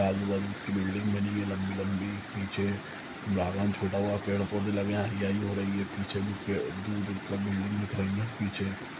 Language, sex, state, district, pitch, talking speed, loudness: Hindi, male, Chhattisgarh, Sukma, 100 Hz, 205 wpm, -32 LUFS